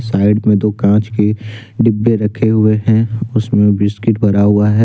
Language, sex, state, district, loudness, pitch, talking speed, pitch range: Hindi, male, Jharkhand, Deoghar, -13 LUFS, 110 Hz, 175 wpm, 105-110 Hz